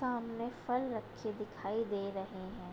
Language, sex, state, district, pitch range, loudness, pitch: Hindi, female, Uttar Pradesh, Budaun, 200-235 Hz, -39 LUFS, 215 Hz